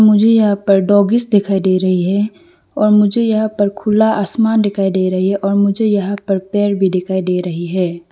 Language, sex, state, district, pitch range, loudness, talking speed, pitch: Hindi, female, Arunachal Pradesh, Lower Dibang Valley, 190-215 Hz, -14 LUFS, 205 wpm, 200 Hz